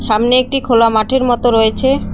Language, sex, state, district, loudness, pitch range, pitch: Bengali, female, West Bengal, Cooch Behar, -13 LUFS, 225-260 Hz, 240 Hz